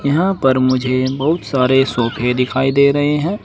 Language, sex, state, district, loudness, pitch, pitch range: Hindi, male, Uttar Pradesh, Saharanpur, -15 LUFS, 135 Hz, 130-145 Hz